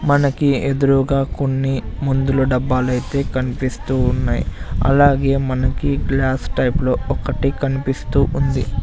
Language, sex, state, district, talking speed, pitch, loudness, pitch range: Telugu, male, Andhra Pradesh, Sri Satya Sai, 100 wpm, 135 Hz, -18 LUFS, 130-140 Hz